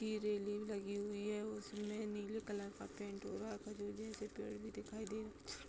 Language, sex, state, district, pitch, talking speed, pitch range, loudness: Hindi, female, Uttar Pradesh, Hamirpur, 210 Hz, 200 wpm, 205-215 Hz, -46 LUFS